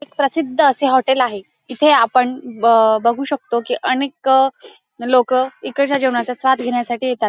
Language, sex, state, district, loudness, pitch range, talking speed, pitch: Marathi, female, Maharashtra, Dhule, -16 LUFS, 240-275 Hz, 150 wpm, 255 Hz